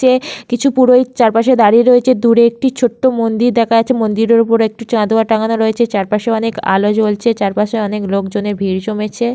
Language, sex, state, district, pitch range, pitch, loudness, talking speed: Bengali, female, West Bengal, Malda, 210-240 Hz, 225 Hz, -13 LUFS, 175 wpm